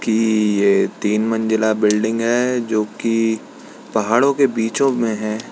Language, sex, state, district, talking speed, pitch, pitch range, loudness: Hindi, male, Uttarakhand, Tehri Garhwal, 140 wpm, 110 Hz, 110-115 Hz, -18 LUFS